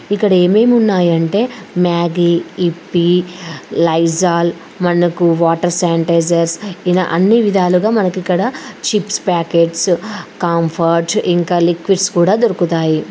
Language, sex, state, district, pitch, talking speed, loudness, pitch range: Telugu, female, Andhra Pradesh, Srikakulam, 175 Hz, 95 wpm, -14 LUFS, 170-195 Hz